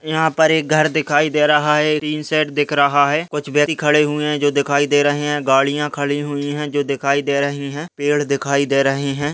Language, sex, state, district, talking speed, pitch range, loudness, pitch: Hindi, male, Chhattisgarh, Sarguja, 235 wpm, 140-150 Hz, -17 LUFS, 145 Hz